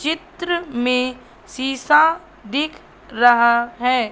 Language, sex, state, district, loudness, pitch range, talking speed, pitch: Hindi, female, Madhya Pradesh, Katni, -18 LUFS, 245-325 Hz, 85 wpm, 265 Hz